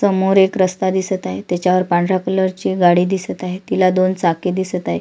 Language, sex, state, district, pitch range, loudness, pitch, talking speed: Marathi, female, Maharashtra, Solapur, 180-190 Hz, -17 LUFS, 185 Hz, 225 wpm